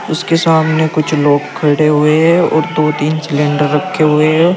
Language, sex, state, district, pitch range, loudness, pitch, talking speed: Hindi, male, Uttar Pradesh, Saharanpur, 150-160 Hz, -12 LUFS, 155 Hz, 185 wpm